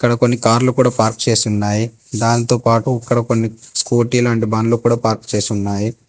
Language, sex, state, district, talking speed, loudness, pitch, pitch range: Telugu, male, Telangana, Hyderabad, 155 wpm, -16 LUFS, 115 Hz, 110-120 Hz